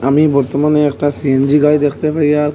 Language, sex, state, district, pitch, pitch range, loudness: Bengali, male, Assam, Hailakandi, 145 Hz, 140-150 Hz, -13 LUFS